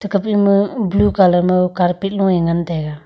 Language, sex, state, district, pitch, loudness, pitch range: Wancho, female, Arunachal Pradesh, Longding, 190 Hz, -15 LUFS, 175-200 Hz